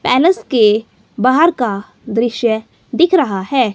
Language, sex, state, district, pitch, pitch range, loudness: Hindi, female, Himachal Pradesh, Shimla, 240 Hz, 220-275 Hz, -14 LUFS